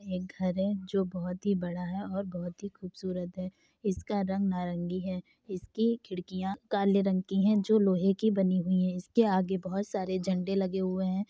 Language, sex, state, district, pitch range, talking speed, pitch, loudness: Hindi, female, Uttar Pradesh, Jalaun, 185-200 Hz, 195 wpm, 190 Hz, -31 LUFS